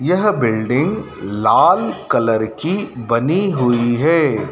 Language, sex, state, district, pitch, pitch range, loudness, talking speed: Hindi, male, Madhya Pradesh, Dhar, 120 Hz, 110-165 Hz, -16 LUFS, 105 wpm